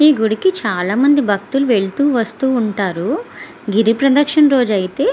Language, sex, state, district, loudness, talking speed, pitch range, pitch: Telugu, female, Andhra Pradesh, Visakhapatnam, -15 LUFS, 140 wpm, 200-280 Hz, 235 Hz